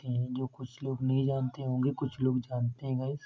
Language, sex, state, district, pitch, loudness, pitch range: Hindi, male, Uttar Pradesh, Etah, 130 Hz, -32 LUFS, 125-135 Hz